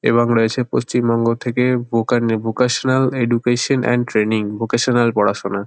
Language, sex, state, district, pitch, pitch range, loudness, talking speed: Bengali, male, West Bengal, Kolkata, 120 Hz, 115-125 Hz, -17 LUFS, 125 wpm